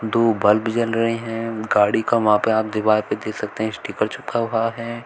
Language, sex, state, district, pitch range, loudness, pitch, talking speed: Hindi, male, Uttar Pradesh, Shamli, 110-115 Hz, -20 LUFS, 110 Hz, 225 wpm